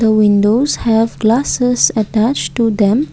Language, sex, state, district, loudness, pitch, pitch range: English, female, Assam, Kamrup Metropolitan, -13 LUFS, 225 Hz, 215-245 Hz